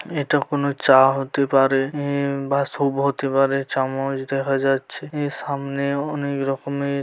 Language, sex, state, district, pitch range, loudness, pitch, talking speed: Bengali, female, West Bengal, Paschim Medinipur, 135-140 Hz, -21 LUFS, 140 Hz, 145 wpm